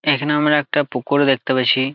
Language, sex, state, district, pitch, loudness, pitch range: Bengali, male, West Bengal, Jalpaiguri, 140 Hz, -17 LUFS, 130-150 Hz